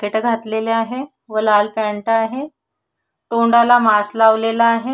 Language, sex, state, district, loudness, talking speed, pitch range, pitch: Marathi, female, Maharashtra, Solapur, -16 LUFS, 135 wpm, 220-235 Hz, 225 Hz